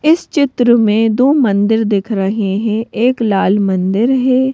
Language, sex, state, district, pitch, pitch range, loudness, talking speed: Hindi, female, Madhya Pradesh, Bhopal, 225 Hz, 205-255 Hz, -13 LUFS, 160 wpm